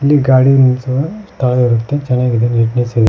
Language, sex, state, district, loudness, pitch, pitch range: Kannada, male, Karnataka, Koppal, -13 LUFS, 125 Hz, 120-135 Hz